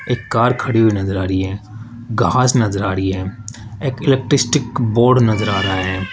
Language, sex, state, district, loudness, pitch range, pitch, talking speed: Hindi, male, Rajasthan, Jaipur, -16 LUFS, 95-125 Hz, 115 Hz, 195 wpm